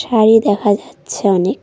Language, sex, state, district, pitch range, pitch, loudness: Bengali, female, West Bengal, Cooch Behar, 200-225 Hz, 205 Hz, -14 LUFS